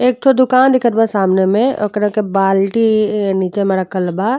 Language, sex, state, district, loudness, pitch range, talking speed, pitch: Bhojpuri, female, Uttar Pradesh, Deoria, -14 LUFS, 195-235 Hz, 205 wpm, 210 Hz